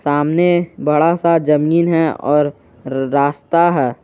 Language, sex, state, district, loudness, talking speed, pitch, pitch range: Hindi, male, Jharkhand, Garhwa, -15 LUFS, 120 wpm, 150 Hz, 145-170 Hz